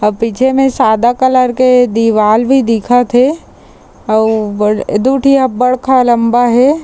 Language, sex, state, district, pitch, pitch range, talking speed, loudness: Chhattisgarhi, female, Chhattisgarh, Jashpur, 245 Hz, 225-260 Hz, 160 wpm, -11 LUFS